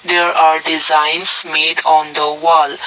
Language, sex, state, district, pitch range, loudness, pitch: English, male, Assam, Kamrup Metropolitan, 155-165 Hz, -12 LUFS, 160 Hz